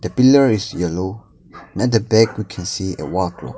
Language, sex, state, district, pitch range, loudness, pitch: English, male, Nagaland, Dimapur, 90-115 Hz, -18 LUFS, 105 Hz